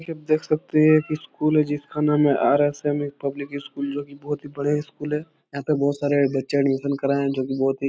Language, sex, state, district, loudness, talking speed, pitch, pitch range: Hindi, male, Bihar, Supaul, -23 LUFS, 280 wpm, 145 Hz, 140-150 Hz